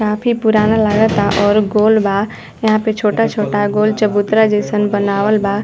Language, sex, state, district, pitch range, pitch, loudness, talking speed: Bhojpuri, female, Uttar Pradesh, Varanasi, 205-220 Hz, 210 Hz, -14 LUFS, 160 wpm